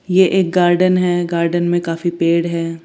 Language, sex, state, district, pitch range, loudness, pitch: Hindi, female, Chandigarh, Chandigarh, 170-180 Hz, -16 LUFS, 175 Hz